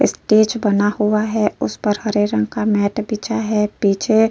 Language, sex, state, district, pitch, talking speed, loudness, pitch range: Hindi, female, Uttar Pradesh, Jyotiba Phule Nagar, 210 Hz, 195 wpm, -18 LUFS, 205-220 Hz